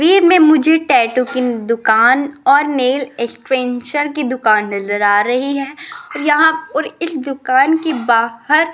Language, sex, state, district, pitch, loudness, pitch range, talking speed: Hindi, female, Rajasthan, Jaipur, 275 Hz, -14 LUFS, 240-310 Hz, 150 wpm